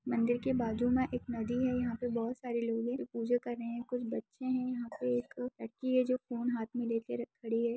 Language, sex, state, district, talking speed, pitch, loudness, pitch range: Hindi, female, Bihar, Jahanabad, 260 wpm, 240 Hz, -35 LUFS, 230-250 Hz